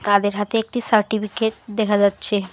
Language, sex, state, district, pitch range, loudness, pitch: Bengali, female, West Bengal, Alipurduar, 205-220 Hz, -20 LUFS, 210 Hz